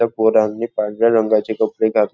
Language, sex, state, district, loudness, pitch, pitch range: Marathi, male, Maharashtra, Nagpur, -17 LUFS, 110 Hz, 110-115 Hz